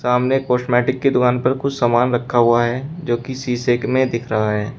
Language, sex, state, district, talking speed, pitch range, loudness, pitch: Hindi, male, Uttar Pradesh, Shamli, 200 wpm, 120-130 Hz, -18 LUFS, 125 Hz